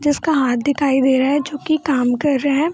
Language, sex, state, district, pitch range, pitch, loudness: Hindi, female, Bihar, Purnia, 265-295 Hz, 285 Hz, -17 LUFS